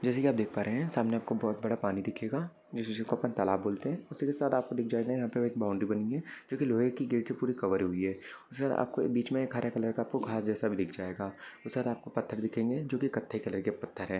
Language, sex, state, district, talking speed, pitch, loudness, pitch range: Hindi, male, Maharashtra, Sindhudurg, 295 wpm, 115 Hz, -33 LUFS, 105-125 Hz